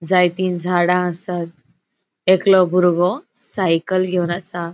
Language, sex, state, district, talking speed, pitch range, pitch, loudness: Konkani, female, Goa, North and South Goa, 100 wpm, 175-185 Hz, 180 Hz, -18 LUFS